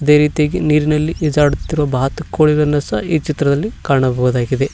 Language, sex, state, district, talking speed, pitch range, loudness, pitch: Kannada, male, Karnataka, Koppal, 115 wpm, 135-150 Hz, -16 LUFS, 150 Hz